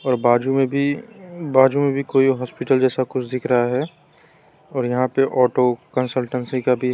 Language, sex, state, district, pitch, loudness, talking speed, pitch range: Hindi, male, Gujarat, Valsad, 130 Hz, -20 LUFS, 180 wpm, 125-140 Hz